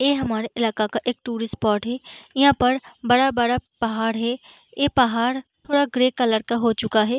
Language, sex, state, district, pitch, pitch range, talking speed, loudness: Hindi, female, Bihar, Sitamarhi, 240 Hz, 225-260 Hz, 190 wpm, -22 LUFS